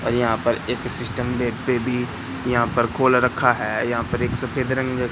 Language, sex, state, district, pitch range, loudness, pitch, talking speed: Hindi, male, Madhya Pradesh, Katni, 120-125 Hz, -21 LUFS, 125 Hz, 190 wpm